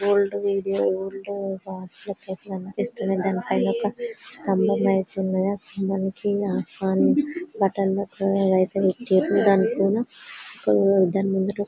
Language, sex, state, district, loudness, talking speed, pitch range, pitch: Telugu, female, Telangana, Karimnagar, -23 LUFS, 75 wpm, 190-200 Hz, 195 Hz